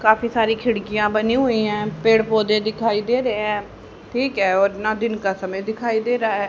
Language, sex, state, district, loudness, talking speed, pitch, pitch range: Hindi, female, Haryana, Rohtak, -20 LUFS, 210 wpm, 220 Hz, 210-230 Hz